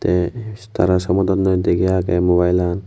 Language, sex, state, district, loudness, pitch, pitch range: Chakma, male, Tripura, Unakoti, -17 LUFS, 90 Hz, 90-95 Hz